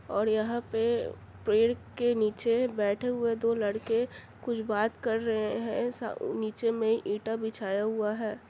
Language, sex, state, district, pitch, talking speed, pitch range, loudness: Hindi, female, Chhattisgarh, Bilaspur, 225 Hz, 160 wpm, 215-235 Hz, -30 LUFS